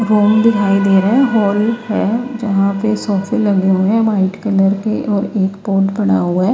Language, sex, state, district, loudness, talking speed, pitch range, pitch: Hindi, female, Himachal Pradesh, Shimla, -14 LUFS, 200 wpm, 195-220 Hz, 205 Hz